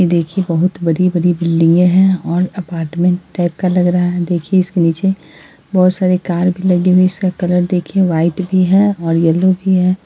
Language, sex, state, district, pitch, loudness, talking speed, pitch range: Hindi, male, Bihar, East Champaran, 180 Hz, -14 LUFS, 205 wpm, 175-185 Hz